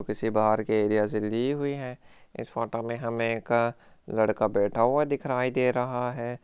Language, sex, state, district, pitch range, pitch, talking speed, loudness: Hindi, male, Rajasthan, Churu, 110-125 Hz, 115 Hz, 185 wpm, -27 LUFS